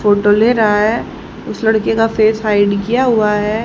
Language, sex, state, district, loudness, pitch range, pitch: Hindi, female, Haryana, Jhajjar, -13 LUFS, 210-225 Hz, 215 Hz